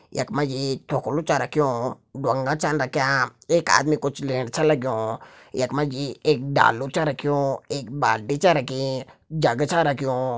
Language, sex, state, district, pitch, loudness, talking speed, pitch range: Garhwali, male, Uttarakhand, Tehri Garhwal, 140 Hz, -23 LUFS, 155 wpm, 130-150 Hz